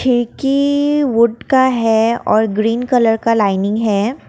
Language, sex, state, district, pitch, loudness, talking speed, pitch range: Hindi, female, Assam, Kamrup Metropolitan, 230 Hz, -15 LUFS, 125 wpm, 220-260 Hz